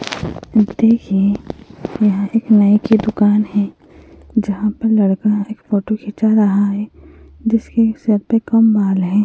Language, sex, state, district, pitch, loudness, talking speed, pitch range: Hindi, female, Uttarakhand, Tehri Garhwal, 210 Hz, -16 LUFS, 135 wpm, 205-220 Hz